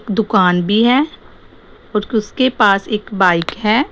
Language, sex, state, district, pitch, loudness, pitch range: Hindi, female, Assam, Sonitpur, 215 Hz, -15 LUFS, 200-240 Hz